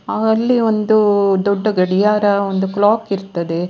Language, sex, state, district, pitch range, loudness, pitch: Kannada, female, Karnataka, Dakshina Kannada, 195-215 Hz, -15 LUFS, 200 Hz